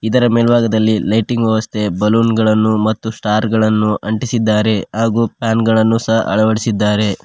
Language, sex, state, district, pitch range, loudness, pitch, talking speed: Kannada, male, Karnataka, Koppal, 110-115 Hz, -14 LUFS, 110 Hz, 125 wpm